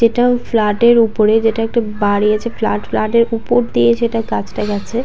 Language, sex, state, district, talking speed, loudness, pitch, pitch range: Bengali, female, West Bengal, Purulia, 165 wpm, -15 LUFS, 225 Hz, 205-235 Hz